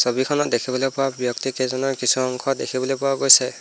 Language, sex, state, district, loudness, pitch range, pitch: Assamese, male, Assam, Hailakandi, -20 LUFS, 125-135 Hz, 130 Hz